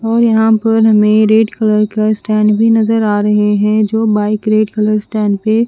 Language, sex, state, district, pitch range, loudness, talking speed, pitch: Hindi, female, Chandigarh, Chandigarh, 210-220 Hz, -12 LUFS, 210 wpm, 215 Hz